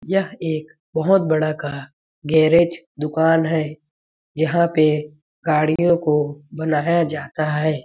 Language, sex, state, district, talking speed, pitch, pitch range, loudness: Hindi, male, Chhattisgarh, Balrampur, 120 wpm, 155 Hz, 150-165 Hz, -20 LUFS